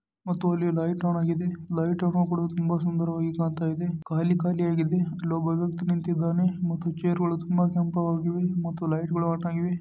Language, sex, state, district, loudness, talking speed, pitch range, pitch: Kannada, male, Karnataka, Dharwad, -27 LUFS, 165 wpm, 165-175 Hz, 170 Hz